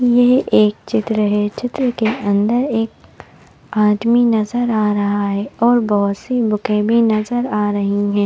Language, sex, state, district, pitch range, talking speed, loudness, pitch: Hindi, female, Madhya Pradesh, Bhopal, 205-240 Hz, 160 wpm, -16 LUFS, 215 Hz